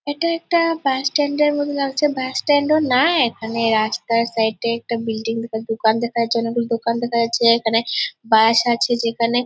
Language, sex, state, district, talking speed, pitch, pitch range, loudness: Bengali, female, West Bengal, Purulia, 165 wpm, 235 Hz, 230-285 Hz, -19 LUFS